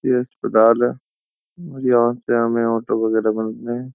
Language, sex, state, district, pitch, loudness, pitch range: Hindi, male, Uttar Pradesh, Jyotiba Phule Nagar, 120 Hz, -19 LUFS, 110-125 Hz